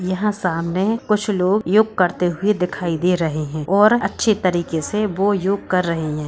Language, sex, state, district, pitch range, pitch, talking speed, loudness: Hindi, male, Bihar, Bhagalpur, 175-210 Hz, 185 Hz, 190 wpm, -19 LUFS